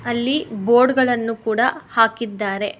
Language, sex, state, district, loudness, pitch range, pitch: Kannada, female, Karnataka, Bangalore, -19 LUFS, 215-245 Hz, 230 Hz